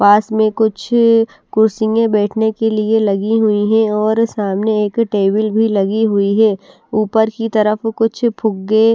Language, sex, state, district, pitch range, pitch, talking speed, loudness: Hindi, female, Bihar, West Champaran, 210-225 Hz, 220 Hz, 160 wpm, -15 LUFS